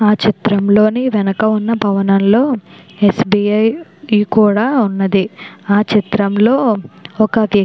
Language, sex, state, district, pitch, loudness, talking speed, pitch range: Telugu, female, Andhra Pradesh, Chittoor, 210 Hz, -14 LUFS, 100 wpm, 200-220 Hz